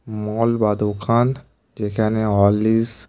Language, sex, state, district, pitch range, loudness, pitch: Bengali, male, West Bengal, Kolkata, 105-115 Hz, -19 LUFS, 110 Hz